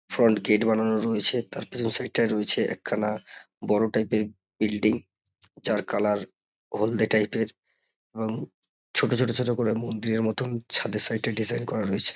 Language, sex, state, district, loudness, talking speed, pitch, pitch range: Bengali, male, West Bengal, North 24 Parganas, -25 LUFS, 165 wpm, 110 Hz, 105-115 Hz